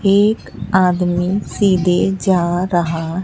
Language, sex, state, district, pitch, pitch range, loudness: Hindi, female, Bihar, Katihar, 180 Hz, 175-195 Hz, -16 LUFS